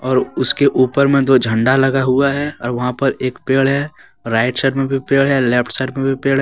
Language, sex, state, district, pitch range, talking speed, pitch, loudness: Hindi, male, Jharkhand, Deoghar, 130-135 Hz, 250 wpm, 135 Hz, -15 LUFS